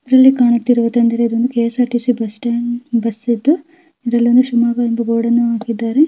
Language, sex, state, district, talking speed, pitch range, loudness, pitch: Kannada, female, Karnataka, Raichur, 160 wpm, 235-250 Hz, -15 LUFS, 240 Hz